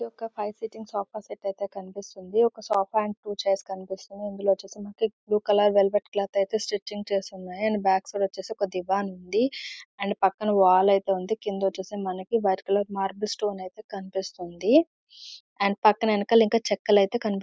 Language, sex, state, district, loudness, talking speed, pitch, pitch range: Telugu, female, Andhra Pradesh, Visakhapatnam, -26 LUFS, 180 wpm, 200 Hz, 195-215 Hz